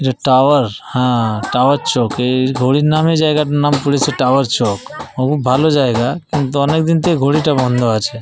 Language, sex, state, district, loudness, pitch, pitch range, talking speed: Bengali, male, Jharkhand, Jamtara, -14 LUFS, 135 Hz, 125-145 Hz, 175 wpm